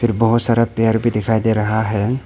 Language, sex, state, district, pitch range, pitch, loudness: Hindi, male, Arunachal Pradesh, Papum Pare, 110-115 Hz, 115 Hz, -17 LUFS